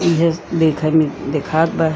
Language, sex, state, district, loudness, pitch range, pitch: Bhojpuri, female, Uttar Pradesh, Gorakhpur, -17 LUFS, 155-165 Hz, 160 Hz